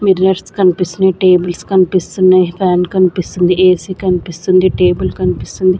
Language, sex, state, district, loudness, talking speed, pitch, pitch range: Telugu, female, Andhra Pradesh, Sri Satya Sai, -13 LUFS, 105 wpm, 185 Hz, 180-185 Hz